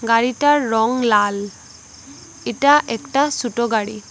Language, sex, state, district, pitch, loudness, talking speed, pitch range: Bengali, female, Assam, Hailakandi, 235 Hz, -18 LUFS, 100 wpm, 220-280 Hz